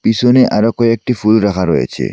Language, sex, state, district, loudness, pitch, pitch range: Bengali, male, Assam, Hailakandi, -13 LUFS, 115 Hz, 110-125 Hz